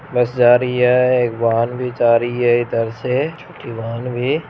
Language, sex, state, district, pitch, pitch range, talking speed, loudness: Hindi, male, Bihar, Jamui, 120 Hz, 115-125 Hz, 225 wpm, -17 LUFS